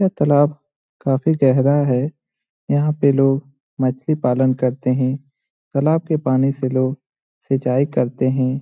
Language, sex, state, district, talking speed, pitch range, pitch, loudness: Hindi, male, Bihar, Lakhisarai, 160 wpm, 130-145 Hz, 135 Hz, -18 LUFS